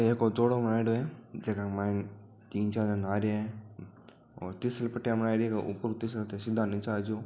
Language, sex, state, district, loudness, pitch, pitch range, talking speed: Marwari, male, Rajasthan, Churu, -32 LUFS, 110 Hz, 100-115 Hz, 200 wpm